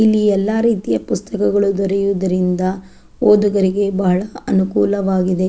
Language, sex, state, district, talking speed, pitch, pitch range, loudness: Kannada, female, Karnataka, Chamarajanagar, 100 wpm, 195 Hz, 185-205 Hz, -16 LUFS